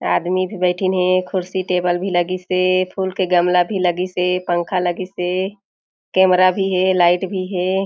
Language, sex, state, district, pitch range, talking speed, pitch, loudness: Chhattisgarhi, female, Chhattisgarh, Jashpur, 180-185 Hz, 185 wpm, 185 Hz, -18 LUFS